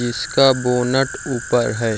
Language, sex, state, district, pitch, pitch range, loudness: Hindi, male, Bihar, Jamui, 125 Hz, 120-135 Hz, -18 LUFS